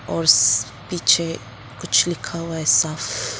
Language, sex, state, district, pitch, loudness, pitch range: Hindi, female, Arunachal Pradesh, Lower Dibang Valley, 155 Hz, -18 LUFS, 115-165 Hz